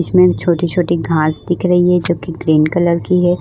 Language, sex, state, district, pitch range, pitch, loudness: Hindi, female, Goa, North and South Goa, 170-180 Hz, 175 Hz, -14 LUFS